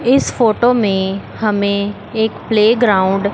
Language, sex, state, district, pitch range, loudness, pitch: Hindi, female, Chandigarh, Chandigarh, 200-230 Hz, -15 LUFS, 215 Hz